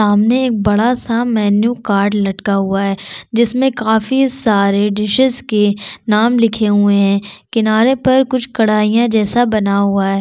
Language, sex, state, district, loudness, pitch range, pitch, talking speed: Hindi, female, Chhattisgarh, Sukma, -14 LUFS, 205-240 Hz, 215 Hz, 160 wpm